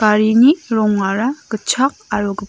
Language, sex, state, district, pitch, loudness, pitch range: Garo, female, Meghalaya, South Garo Hills, 215 Hz, -16 LUFS, 210-255 Hz